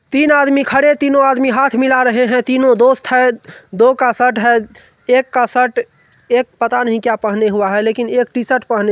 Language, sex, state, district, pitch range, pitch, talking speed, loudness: Hindi, male, Bihar, Supaul, 235-260 Hz, 250 Hz, 215 wpm, -13 LUFS